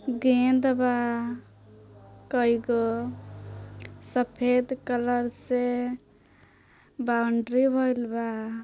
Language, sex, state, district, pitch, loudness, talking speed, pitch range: Bhojpuri, female, Bihar, Gopalganj, 240 Hz, -26 LUFS, 70 wpm, 220-250 Hz